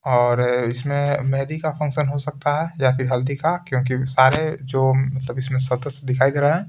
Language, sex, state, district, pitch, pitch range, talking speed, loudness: Hindi, male, Bihar, Patna, 135 Hz, 130-145 Hz, 195 wpm, -21 LUFS